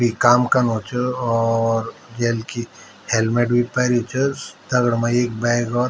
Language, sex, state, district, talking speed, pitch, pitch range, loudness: Garhwali, male, Uttarakhand, Tehri Garhwal, 175 wpm, 120 Hz, 115-125 Hz, -20 LUFS